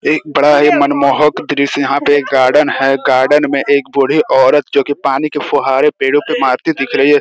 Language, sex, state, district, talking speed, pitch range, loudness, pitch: Hindi, male, Bihar, Jamui, 210 wpm, 135-145 Hz, -12 LUFS, 140 Hz